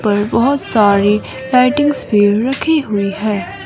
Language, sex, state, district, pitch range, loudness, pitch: Hindi, female, Himachal Pradesh, Shimla, 205-270 Hz, -13 LUFS, 215 Hz